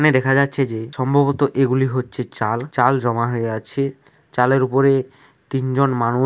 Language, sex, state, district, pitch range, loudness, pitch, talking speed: Bengali, male, West Bengal, Jhargram, 125-140 Hz, -19 LUFS, 130 Hz, 155 wpm